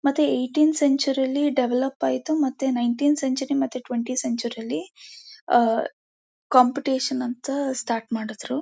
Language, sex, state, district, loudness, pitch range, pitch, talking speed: Kannada, female, Karnataka, Mysore, -23 LUFS, 245-285 Hz, 265 Hz, 140 wpm